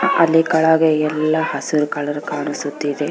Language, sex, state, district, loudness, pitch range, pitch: Kannada, female, Karnataka, Bellary, -18 LUFS, 145-160 Hz, 155 Hz